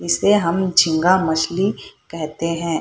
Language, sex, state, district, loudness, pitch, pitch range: Hindi, female, Bihar, Purnia, -18 LUFS, 170 Hz, 160-185 Hz